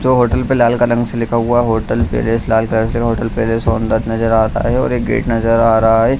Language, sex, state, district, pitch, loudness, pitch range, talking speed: Hindi, male, Bihar, Jamui, 115 Hz, -15 LUFS, 115-120 Hz, 175 wpm